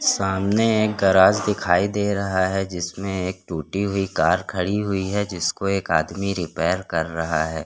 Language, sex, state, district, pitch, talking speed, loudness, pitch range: Hindi, male, Chhattisgarh, Korba, 95 Hz, 170 wpm, -22 LUFS, 90-100 Hz